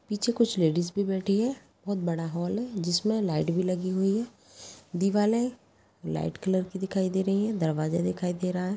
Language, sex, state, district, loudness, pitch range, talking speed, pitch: Hindi, female, Bihar, Begusarai, -28 LUFS, 170-205 Hz, 200 wpm, 185 Hz